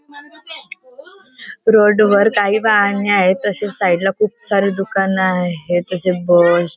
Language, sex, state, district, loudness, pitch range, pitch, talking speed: Marathi, female, Maharashtra, Chandrapur, -14 LUFS, 185-220 Hz, 200 Hz, 135 wpm